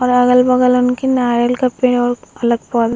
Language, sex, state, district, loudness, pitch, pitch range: Hindi, female, Bihar, Vaishali, -14 LUFS, 250 Hz, 240-250 Hz